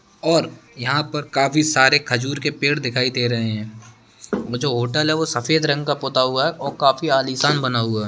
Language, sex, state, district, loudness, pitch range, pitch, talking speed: Hindi, male, Bihar, Darbhanga, -19 LUFS, 120-145 Hz, 135 Hz, 210 wpm